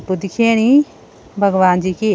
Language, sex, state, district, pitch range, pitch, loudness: Garhwali, female, Uttarakhand, Tehri Garhwal, 185-230 Hz, 200 Hz, -15 LUFS